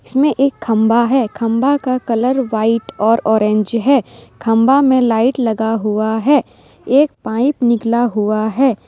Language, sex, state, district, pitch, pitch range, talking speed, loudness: Hindi, female, Jharkhand, Deoghar, 235 Hz, 220-265 Hz, 150 wpm, -15 LUFS